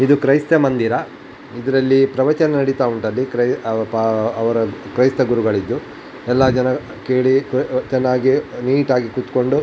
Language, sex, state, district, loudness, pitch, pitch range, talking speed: Kannada, male, Karnataka, Dakshina Kannada, -17 LUFS, 130 Hz, 120-135 Hz, 130 wpm